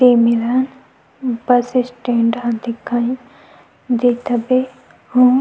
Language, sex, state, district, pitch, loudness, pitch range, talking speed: Chhattisgarhi, female, Chhattisgarh, Sukma, 245 Hz, -17 LUFS, 240-255 Hz, 110 wpm